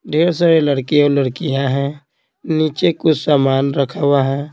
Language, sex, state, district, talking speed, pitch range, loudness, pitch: Hindi, male, Bihar, Patna, 160 wpm, 140-155 Hz, -16 LUFS, 145 Hz